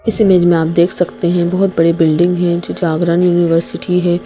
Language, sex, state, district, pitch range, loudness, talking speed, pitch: Hindi, female, Madhya Pradesh, Bhopal, 170-180 Hz, -13 LUFS, 210 wpm, 175 Hz